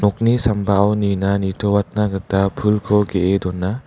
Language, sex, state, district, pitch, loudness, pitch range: Garo, male, Meghalaya, West Garo Hills, 100 Hz, -18 LUFS, 95-105 Hz